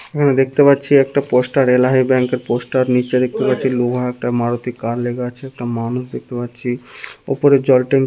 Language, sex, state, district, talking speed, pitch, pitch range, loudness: Bengali, male, West Bengal, Dakshin Dinajpur, 180 wpm, 125 Hz, 125-135 Hz, -17 LUFS